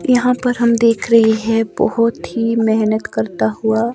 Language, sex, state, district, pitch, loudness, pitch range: Hindi, female, Himachal Pradesh, Shimla, 230 Hz, -15 LUFS, 220-235 Hz